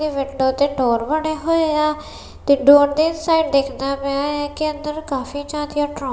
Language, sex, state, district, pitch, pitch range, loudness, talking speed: Punjabi, female, Punjab, Kapurthala, 290 Hz, 275-305 Hz, -19 LUFS, 175 wpm